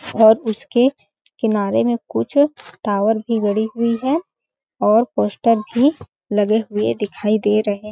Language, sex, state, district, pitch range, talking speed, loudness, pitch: Hindi, female, Chhattisgarh, Balrampur, 210-240 Hz, 145 wpm, -18 LUFS, 220 Hz